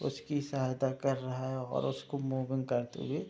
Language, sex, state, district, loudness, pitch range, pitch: Hindi, male, Bihar, Madhepura, -35 LUFS, 130-135 Hz, 130 Hz